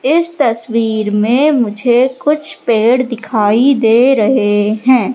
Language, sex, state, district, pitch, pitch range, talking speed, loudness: Hindi, female, Madhya Pradesh, Katni, 240 Hz, 220-265 Hz, 115 wpm, -12 LUFS